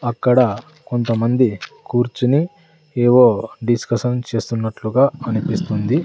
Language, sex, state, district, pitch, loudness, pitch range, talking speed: Telugu, male, Andhra Pradesh, Sri Satya Sai, 120 Hz, -18 LUFS, 115-130 Hz, 70 wpm